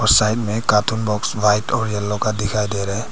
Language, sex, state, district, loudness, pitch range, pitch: Hindi, male, Arunachal Pradesh, Papum Pare, -19 LUFS, 105-110 Hz, 105 Hz